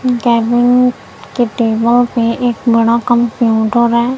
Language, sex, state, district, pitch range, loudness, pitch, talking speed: Hindi, female, Punjab, Kapurthala, 230-245 Hz, -12 LUFS, 235 Hz, 115 wpm